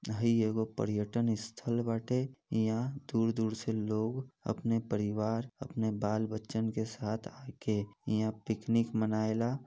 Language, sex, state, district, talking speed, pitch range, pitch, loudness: Bhojpuri, male, Uttar Pradesh, Deoria, 130 wpm, 110-115 Hz, 110 Hz, -34 LUFS